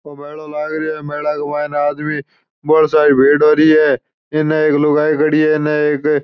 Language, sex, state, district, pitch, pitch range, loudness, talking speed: Marwari, male, Rajasthan, Churu, 150 Hz, 150-155 Hz, -14 LUFS, 220 wpm